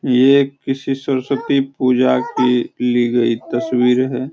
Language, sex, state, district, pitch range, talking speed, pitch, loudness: Hindi, male, Bihar, Araria, 125-135 Hz, 125 wpm, 125 Hz, -16 LUFS